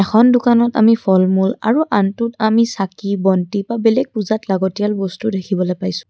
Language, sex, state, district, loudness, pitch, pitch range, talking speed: Assamese, female, Assam, Kamrup Metropolitan, -16 LUFS, 210 Hz, 190-230 Hz, 165 wpm